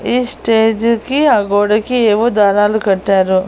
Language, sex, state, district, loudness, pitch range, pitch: Telugu, female, Andhra Pradesh, Annamaya, -13 LUFS, 200-235 Hz, 220 Hz